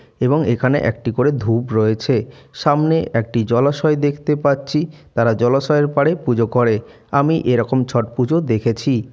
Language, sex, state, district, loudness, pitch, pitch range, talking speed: Bengali, male, West Bengal, Jalpaiguri, -17 LUFS, 130 Hz, 115-145 Hz, 140 wpm